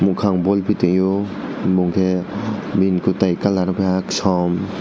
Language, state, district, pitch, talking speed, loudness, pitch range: Kokborok, Tripura, West Tripura, 95 Hz, 110 wpm, -19 LUFS, 90-100 Hz